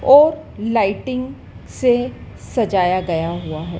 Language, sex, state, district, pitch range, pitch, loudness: Hindi, female, Madhya Pradesh, Dhar, 175-255 Hz, 225 Hz, -18 LUFS